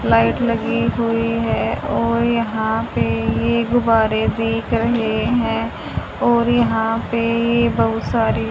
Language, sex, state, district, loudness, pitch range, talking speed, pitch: Hindi, female, Haryana, Rohtak, -18 LUFS, 225-235 Hz, 125 wpm, 230 Hz